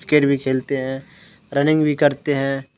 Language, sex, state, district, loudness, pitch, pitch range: Hindi, male, Jharkhand, Deoghar, -19 LUFS, 140 Hz, 135-150 Hz